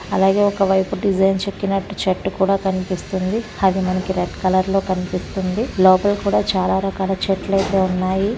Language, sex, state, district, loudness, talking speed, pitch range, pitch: Telugu, female, Andhra Pradesh, Visakhapatnam, -19 LUFS, 135 wpm, 185-195 Hz, 190 Hz